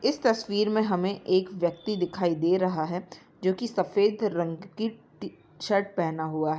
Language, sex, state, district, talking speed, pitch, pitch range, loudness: Hindi, male, Bihar, Samastipur, 175 wpm, 185 Hz, 170-210 Hz, -27 LUFS